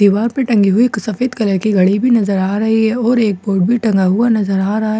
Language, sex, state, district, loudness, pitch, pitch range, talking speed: Hindi, female, Bihar, Katihar, -14 LUFS, 215 Hz, 200-230 Hz, 300 wpm